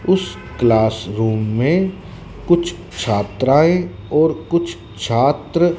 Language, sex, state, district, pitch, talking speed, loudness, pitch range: Hindi, male, Madhya Pradesh, Dhar, 130 Hz, 95 wpm, -17 LUFS, 110-170 Hz